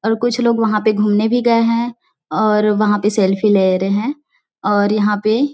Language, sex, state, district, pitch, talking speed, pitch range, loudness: Hindi, female, Chhattisgarh, Bilaspur, 215 Hz, 205 wpm, 210-230 Hz, -16 LUFS